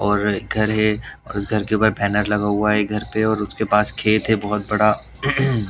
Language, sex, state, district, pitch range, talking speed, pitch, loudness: Hindi, male, Bihar, Katihar, 105-110 Hz, 230 wpm, 105 Hz, -20 LUFS